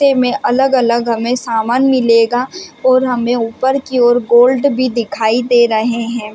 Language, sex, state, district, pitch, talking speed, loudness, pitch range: Hindi, female, Chhattisgarh, Bilaspur, 245 Hz, 170 wpm, -13 LUFS, 230-255 Hz